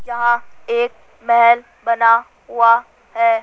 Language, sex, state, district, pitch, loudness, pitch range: Hindi, female, Rajasthan, Jaipur, 235 Hz, -16 LUFS, 230-240 Hz